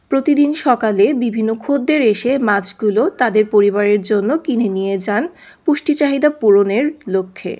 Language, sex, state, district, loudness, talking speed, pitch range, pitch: Bengali, female, West Bengal, Jhargram, -15 LUFS, 125 wpm, 205-290 Hz, 225 Hz